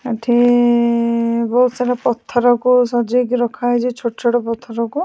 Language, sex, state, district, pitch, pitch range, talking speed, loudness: Odia, female, Odisha, Khordha, 240 Hz, 235-245 Hz, 105 wpm, -16 LUFS